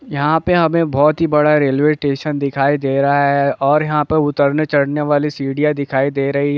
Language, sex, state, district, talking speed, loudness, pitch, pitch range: Hindi, male, Jharkhand, Sahebganj, 200 wpm, -16 LUFS, 145 Hz, 140-150 Hz